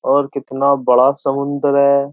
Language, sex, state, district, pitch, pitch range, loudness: Hindi, male, Uttar Pradesh, Jyotiba Phule Nagar, 140 Hz, 135-140 Hz, -15 LUFS